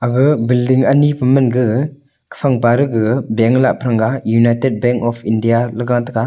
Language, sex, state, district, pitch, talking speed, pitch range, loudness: Wancho, male, Arunachal Pradesh, Longding, 120 Hz, 155 wpm, 115-130 Hz, -14 LUFS